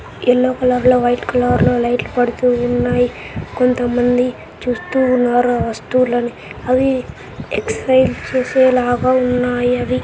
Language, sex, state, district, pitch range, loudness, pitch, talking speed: Telugu, male, Andhra Pradesh, Anantapur, 245-255 Hz, -16 LUFS, 245 Hz, 125 wpm